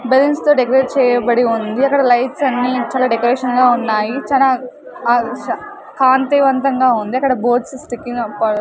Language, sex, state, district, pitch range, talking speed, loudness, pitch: Telugu, female, Andhra Pradesh, Sri Satya Sai, 240-270 Hz, 140 wpm, -15 LUFS, 255 Hz